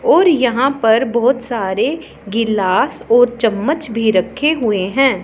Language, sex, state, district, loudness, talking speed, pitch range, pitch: Hindi, female, Punjab, Pathankot, -15 LUFS, 135 wpm, 215-270 Hz, 235 Hz